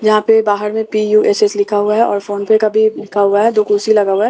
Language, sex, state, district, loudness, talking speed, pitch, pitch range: Hindi, female, Bihar, Katihar, -13 LUFS, 295 wpm, 215 Hz, 205-220 Hz